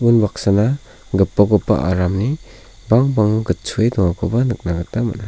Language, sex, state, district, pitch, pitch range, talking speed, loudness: Garo, male, Meghalaya, South Garo Hills, 105 Hz, 95-115 Hz, 100 wpm, -17 LUFS